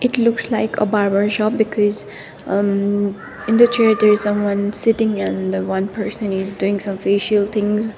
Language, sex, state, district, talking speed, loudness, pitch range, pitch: English, female, Sikkim, Gangtok, 175 wpm, -18 LUFS, 200-220 Hz, 205 Hz